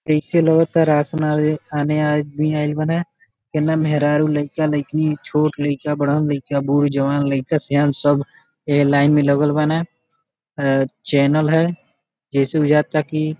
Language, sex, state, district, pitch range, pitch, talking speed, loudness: Bhojpuri, male, Uttar Pradesh, Gorakhpur, 145-155 Hz, 150 Hz, 145 wpm, -18 LUFS